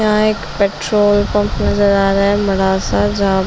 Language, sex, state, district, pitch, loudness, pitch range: Hindi, female, Chhattisgarh, Balrampur, 200 Hz, -14 LUFS, 195-205 Hz